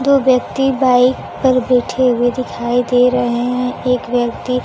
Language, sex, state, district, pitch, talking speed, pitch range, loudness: Hindi, female, Bihar, Kaimur, 250 Hz, 155 wpm, 245-255 Hz, -15 LUFS